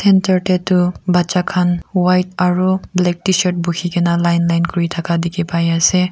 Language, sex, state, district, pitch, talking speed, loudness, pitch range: Nagamese, female, Nagaland, Kohima, 180 Hz, 175 wpm, -16 LUFS, 170-185 Hz